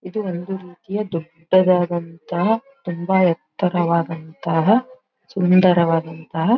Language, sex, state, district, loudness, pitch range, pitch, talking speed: Kannada, female, Karnataka, Belgaum, -20 LUFS, 165-195 Hz, 180 Hz, 65 wpm